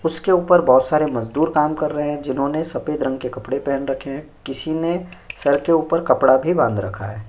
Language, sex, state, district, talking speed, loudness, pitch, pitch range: Hindi, male, Uttar Pradesh, Jyotiba Phule Nagar, 220 wpm, -19 LUFS, 145 Hz, 130-160 Hz